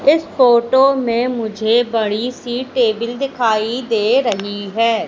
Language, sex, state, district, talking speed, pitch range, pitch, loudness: Hindi, female, Madhya Pradesh, Katni, 130 wpm, 225-255 Hz, 235 Hz, -16 LUFS